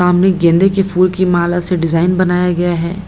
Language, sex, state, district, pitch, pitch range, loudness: Hindi, female, Bihar, Lakhisarai, 180 Hz, 175-185 Hz, -13 LUFS